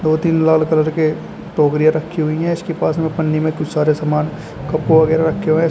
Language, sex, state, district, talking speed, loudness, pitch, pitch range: Hindi, male, Uttar Pradesh, Shamli, 230 wpm, -16 LUFS, 155 Hz, 155-160 Hz